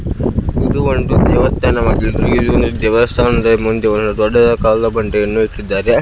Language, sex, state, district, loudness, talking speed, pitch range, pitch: Kannada, male, Karnataka, Belgaum, -14 LUFS, 110 wpm, 105-115 Hz, 110 Hz